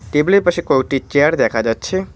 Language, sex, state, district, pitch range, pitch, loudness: Bengali, male, West Bengal, Cooch Behar, 130-175 Hz, 145 Hz, -16 LUFS